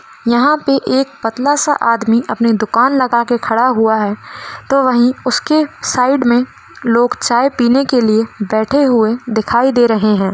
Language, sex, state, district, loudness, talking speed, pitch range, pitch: Hindi, female, Rajasthan, Nagaur, -13 LUFS, 170 wpm, 225-265 Hz, 240 Hz